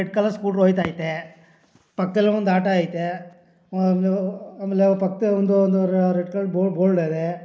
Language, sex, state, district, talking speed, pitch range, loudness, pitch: Kannada, male, Karnataka, Mysore, 145 wpm, 175-195 Hz, -21 LUFS, 185 Hz